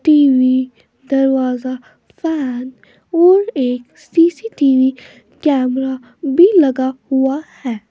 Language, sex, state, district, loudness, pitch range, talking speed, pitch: Hindi, female, Maharashtra, Washim, -15 LUFS, 255-310 Hz, 85 wpm, 265 Hz